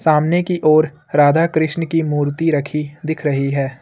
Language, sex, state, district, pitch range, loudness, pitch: Hindi, male, Uttar Pradesh, Lucknow, 145-160 Hz, -17 LUFS, 155 Hz